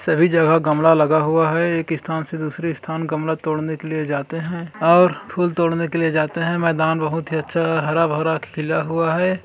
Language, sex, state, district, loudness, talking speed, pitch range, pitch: Hindi, male, Chhattisgarh, Kabirdham, -19 LUFS, 210 wpm, 155-165 Hz, 160 Hz